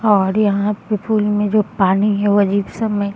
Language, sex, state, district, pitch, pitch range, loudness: Hindi, female, Bihar, Samastipur, 205 Hz, 200-210 Hz, -17 LUFS